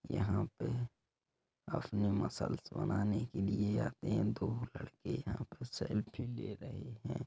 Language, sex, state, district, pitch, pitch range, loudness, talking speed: Hindi, male, Uttar Pradesh, Jalaun, 105 Hz, 100-120 Hz, -39 LUFS, 140 wpm